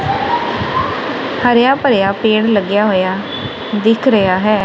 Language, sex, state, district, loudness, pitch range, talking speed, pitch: Punjabi, female, Punjab, Kapurthala, -14 LUFS, 200-225 Hz, 105 wpm, 215 Hz